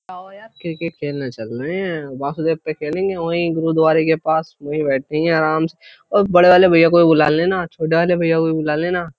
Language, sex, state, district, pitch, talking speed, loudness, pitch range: Hindi, male, Uttar Pradesh, Jyotiba Phule Nagar, 160 Hz, 195 wpm, -17 LUFS, 155-170 Hz